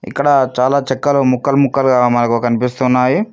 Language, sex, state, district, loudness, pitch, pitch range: Telugu, male, Telangana, Mahabubabad, -14 LUFS, 130 Hz, 125-140 Hz